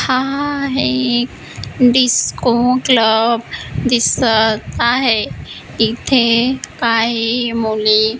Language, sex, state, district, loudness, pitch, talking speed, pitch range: Marathi, female, Maharashtra, Gondia, -15 LUFS, 240 Hz, 65 wpm, 225-255 Hz